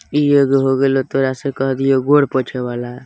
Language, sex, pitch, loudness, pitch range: Bajjika, male, 135 Hz, -16 LUFS, 130-140 Hz